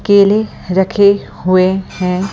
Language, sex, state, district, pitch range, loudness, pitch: Hindi, female, Delhi, New Delhi, 185-200 Hz, -13 LUFS, 190 Hz